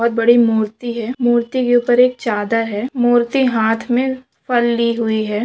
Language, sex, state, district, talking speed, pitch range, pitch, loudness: Hindi, female, West Bengal, Jalpaiguri, 175 wpm, 225-245 Hz, 235 Hz, -16 LUFS